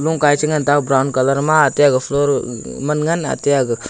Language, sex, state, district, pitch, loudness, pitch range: Wancho, male, Arunachal Pradesh, Longding, 145 Hz, -16 LUFS, 135-150 Hz